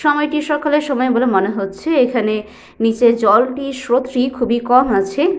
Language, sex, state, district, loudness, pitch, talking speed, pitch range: Bengali, female, Jharkhand, Sahebganj, -16 LUFS, 250 Hz, 145 wpm, 225-275 Hz